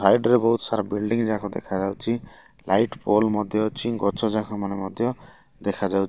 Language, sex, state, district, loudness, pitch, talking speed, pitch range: Odia, male, Odisha, Malkangiri, -24 LUFS, 105 Hz, 140 wpm, 100-115 Hz